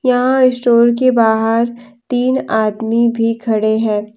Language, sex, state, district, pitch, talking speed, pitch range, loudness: Hindi, female, Jharkhand, Deoghar, 235 Hz, 130 wpm, 220-245 Hz, -14 LUFS